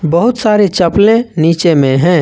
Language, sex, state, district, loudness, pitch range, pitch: Hindi, male, Jharkhand, Ranchi, -10 LUFS, 165-210 Hz, 175 Hz